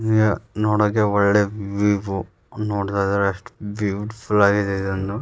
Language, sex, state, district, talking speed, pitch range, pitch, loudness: Kannada, male, Karnataka, Raichur, 115 wpm, 100-105 Hz, 105 Hz, -21 LUFS